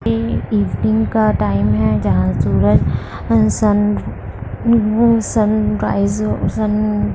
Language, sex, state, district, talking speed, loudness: Hindi, female, Bihar, Kishanganj, 110 wpm, -16 LUFS